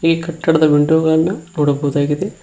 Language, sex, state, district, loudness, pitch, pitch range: Kannada, male, Karnataka, Koppal, -15 LUFS, 160 Hz, 145-165 Hz